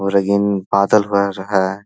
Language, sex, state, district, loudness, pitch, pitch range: Hindi, male, Bihar, Jahanabad, -16 LUFS, 100 Hz, 95-100 Hz